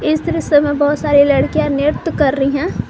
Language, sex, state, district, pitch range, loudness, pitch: Hindi, female, Jharkhand, Garhwa, 285-300 Hz, -14 LUFS, 290 Hz